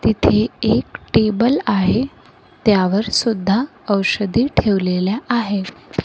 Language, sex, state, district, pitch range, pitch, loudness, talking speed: Marathi, female, Maharashtra, Gondia, 195-235 Hz, 205 Hz, -18 LUFS, 90 wpm